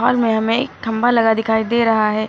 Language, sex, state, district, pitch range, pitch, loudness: Hindi, female, Uttar Pradesh, Lucknow, 220-235 Hz, 225 Hz, -17 LUFS